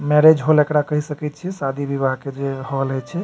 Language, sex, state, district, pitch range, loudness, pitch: Maithili, male, Bihar, Supaul, 135-150 Hz, -19 LUFS, 145 Hz